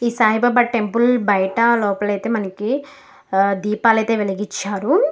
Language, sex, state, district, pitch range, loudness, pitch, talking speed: Telugu, female, Andhra Pradesh, Guntur, 205-235 Hz, -18 LUFS, 220 Hz, 105 wpm